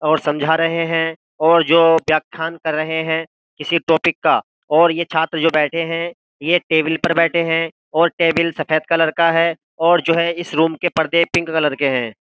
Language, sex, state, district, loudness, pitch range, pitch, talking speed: Hindi, male, Uttar Pradesh, Jyotiba Phule Nagar, -17 LUFS, 160-170 Hz, 165 Hz, 200 wpm